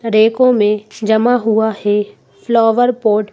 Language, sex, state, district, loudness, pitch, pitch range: Hindi, female, Madhya Pradesh, Bhopal, -14 LUFS, 220 Hz, 210-235 Hz